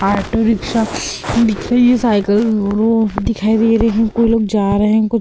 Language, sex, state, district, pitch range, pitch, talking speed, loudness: Hindi, female, Uttar Pradesh, Hamirpur, 210-225 Hz, 220 Hz, 185 wpm, -15 LUFS